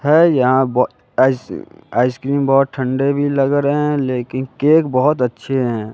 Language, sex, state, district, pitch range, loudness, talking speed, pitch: Hindi, male, Bihar, West Champaran, 125-140 Hz, -16 LUFS, 160 wpm, 135 Hz